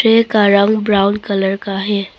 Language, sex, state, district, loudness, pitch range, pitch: Hindi, female, Arunachal Pradesh, Papum Pare, -14 LUFS, 195-215 Hz, 200 Hz